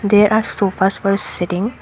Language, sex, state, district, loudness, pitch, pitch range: English, female, Assam, Kamrup Metropolitan, -17 LUFS, 200 Hz, 190-210 Hz